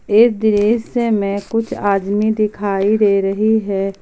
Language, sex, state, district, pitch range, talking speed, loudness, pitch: Hindi, female, Jharkhand, Palamu, 200-220 Hz, 135 wpm, -16 LUFS, 210 Hz